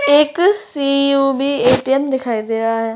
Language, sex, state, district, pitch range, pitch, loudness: Hindi, female, Uttarakhand, Uttarkashi, 245-285 Hz, 275 Hz, -15 LUFS